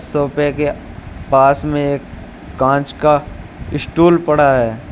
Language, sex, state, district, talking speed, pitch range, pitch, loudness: Hindi, male, Uttar Pradesh, Shamli, 120 wpm, 135-150 Hz, 140 Hz, -15 LUFS